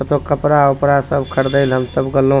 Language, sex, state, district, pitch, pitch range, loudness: Maithili, male, Bihar, Supaul, 135 Hz, 135-140 Hz, -15 LUFS